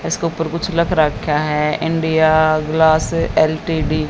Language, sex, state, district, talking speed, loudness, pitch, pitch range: Hindi, female, Haryana, Jhajjar, 145 wpm, -16 LUFS, 160 Hz, 155-165 Hz